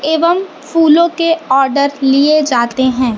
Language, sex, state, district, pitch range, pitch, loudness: Hindi, female, Madhya Pradesh, Katni, 265-330 Hz, 290 Hz, -12 LUFS